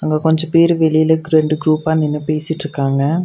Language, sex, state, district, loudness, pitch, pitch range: Tamil, female, Tamil Nadu, Nilgiris, -15 LUFS, 155 Hz, 155-160 Hz